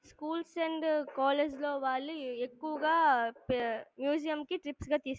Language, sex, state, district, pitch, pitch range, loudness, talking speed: Telugu, female, Andhra Pradesh, Guntur, 295 Hz, 265-315 Hz, -33 LUFS, 125 wpm